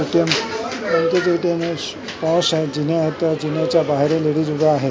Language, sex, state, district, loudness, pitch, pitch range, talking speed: Marathi, male, Maharashtra, Mumbai Suburban, -19 LUFS, 160 Hz, 155-170 Hz, 110 wpm